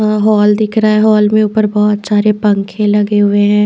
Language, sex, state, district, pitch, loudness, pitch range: Hindi, female, Chandigarh, Chandigarh, 210 Hz, -11 LUFS, 205-215 Hz